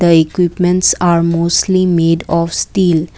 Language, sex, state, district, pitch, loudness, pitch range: English, female, Assam, Kamrup Metropolitan, 170 Hz, -13 LUFS, 165-180 Hz